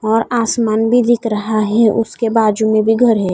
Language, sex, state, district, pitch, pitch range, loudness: Hindi, female, Odisha, Khordha, 225 Hz, 215-230 Hz, -14 LUFS